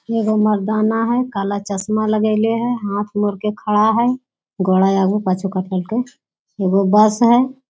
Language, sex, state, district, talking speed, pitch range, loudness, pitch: Hindi, female, Bihar, Jamui, 130 wpm, 195-225 Hz, -17 LUFS, 215 Hz